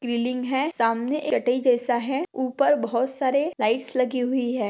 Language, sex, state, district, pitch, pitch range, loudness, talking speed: Hindi, female, Telangana, Nalgonda, 250 Hz, 240-265 Hz, -24 LUFS, 140 wpm